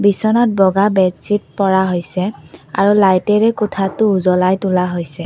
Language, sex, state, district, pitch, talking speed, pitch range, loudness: Assamese, female, Assam, Kamrup Metropolitan, 195 Hz, 135 wpm, 185-205 Hz, -15 LUFS